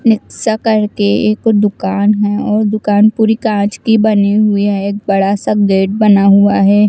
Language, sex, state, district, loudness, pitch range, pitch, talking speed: Hindi, female, Chandigarh, Chandigarh, -12 LUFS, 200-215 Hz, 210 Hz, 185 wpm